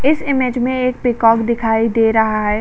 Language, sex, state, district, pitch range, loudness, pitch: Hindi, female, Uttar Pradesh, Jalaun, 225-255 Hz, -15 LUFS, 235 Hz